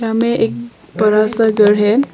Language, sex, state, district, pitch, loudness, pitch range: Hindi, female, Arunachal Pradesh, Longding, 225 Hz, -14 LUFS, 215-235 Hz